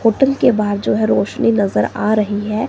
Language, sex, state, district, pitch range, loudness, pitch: Hindi, female, Himachal Pradesh, Shimla, 200-225 Hz, -16 LUFS, 210 Hz